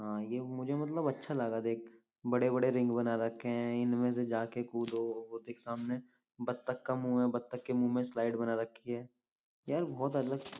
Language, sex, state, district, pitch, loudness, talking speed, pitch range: Hindi, male, Uttar Pradesh, Jyotiba Phule Nagar, 120 Hz, -35 LUFS, 200 wpm, 115-125 Hz